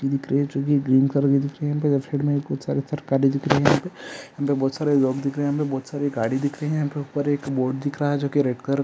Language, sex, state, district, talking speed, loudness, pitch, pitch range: Hindi, male, Chhattisgarh, Rajnandgaon, 285 wpm, -23 LUFS, 140 Hz, 135-145 Hz